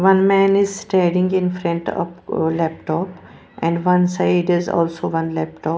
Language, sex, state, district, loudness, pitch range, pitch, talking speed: English, female, Punjab, Pathankot, -19 LUFS, 165-190 Hz, 175 Hz, 155 wpm